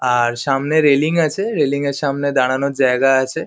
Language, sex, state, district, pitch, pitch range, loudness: Bengali, male, West Bengal, Kolkata, 140 Hz, 130-145 Hz, -17 LUFS